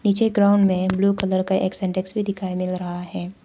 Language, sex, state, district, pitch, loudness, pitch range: Hindi, female, Arunachal Pradesh, Papum Pare, 190 Hz, -21 LUFS, 185-200 Hz